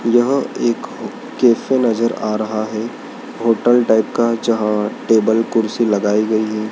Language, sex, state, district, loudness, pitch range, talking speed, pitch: Hindi, male, Madhya Pradesh, Dhar, -17 LUFS, 110-120 Hz, 145 wpm, 115 Hz